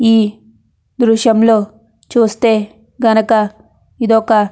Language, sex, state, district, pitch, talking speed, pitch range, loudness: Telugu, female, Andhra Pradesh, Anantapur, 220 Hz, 80 wpm, 210-225 Hz, -13 LUFS